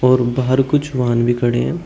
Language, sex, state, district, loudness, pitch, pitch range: Hindi, male, Uttar Pradesh, Shamli, -17 LUFS, 125 Hz, 120-135 Hz